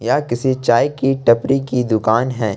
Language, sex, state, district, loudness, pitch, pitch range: Hindi, male, Jharkhand, Ranchi, -16 LUFS, 125 Hz, 115-135 Hz